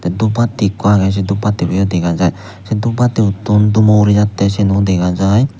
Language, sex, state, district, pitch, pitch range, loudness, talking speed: Chakma, male, Tripura, Unakoti, 100 Hz, 95-105 Hz, -13 LUFS, 170 wpm